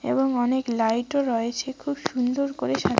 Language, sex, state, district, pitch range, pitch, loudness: Bengali, female, West Bengal, Cooch Behar, 235-275 Hz, 255 Hz, -25 LUFS